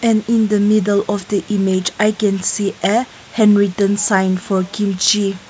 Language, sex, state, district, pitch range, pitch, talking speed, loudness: English, female, Nagaland, Kohima, 195-215 Hz, 205 Hz, 155 wpm, -16 LUFS